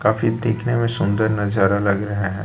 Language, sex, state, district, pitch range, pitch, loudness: Hindi, male, Chhattisgarh, Raipur, 100-115 Hz, 105 Hz, -20 LUFS